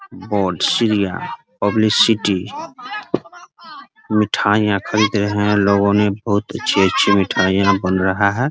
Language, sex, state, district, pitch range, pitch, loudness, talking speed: Hindi, male, Bihar, Muzaffarpur, 100-110 Hz, 105 Hz, -17 LUFS, 105 wpm